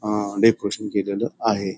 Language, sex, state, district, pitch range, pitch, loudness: Marathi, male, Maharashtra, Pune, 100-110 Hz, 105 Hz, -22 LUFS